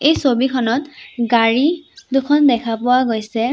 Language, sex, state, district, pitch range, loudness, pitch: Assamese, female, Assam, Sonitpur, 235-290 Hz, -16 LUFS, 255 Hz